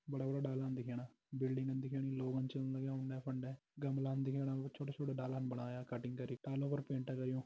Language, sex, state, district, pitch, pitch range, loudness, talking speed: Garhwali, male, Uttarakhand, Tehri Garhwal, 130 Hz, 130-135 Hz, -42 LUFS, 175 wpm